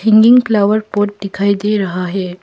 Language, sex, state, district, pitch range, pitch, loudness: Hindi, female, Arunachal Pradesh, Papum Pare, 200-215 Hz, 205 Hz, -14 LUFS